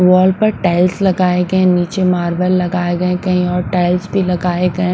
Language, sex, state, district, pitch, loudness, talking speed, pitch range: Hindi, female, Punjab, Pathankot, 180 Hz, -14 LUFS, 205 wpm, 180-185 Hz